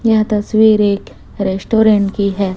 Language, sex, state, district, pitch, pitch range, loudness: Hindi, female, Chhattisgarh, Raipur, 210 Hz, 200-215 Hz, -14 LUFS